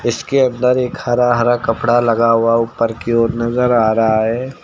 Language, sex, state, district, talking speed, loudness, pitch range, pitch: Hindi, male, Uttar Pradesh, Lucknow, 195 wpm, -15 LUFS, 115-125 Hz, 120 Hz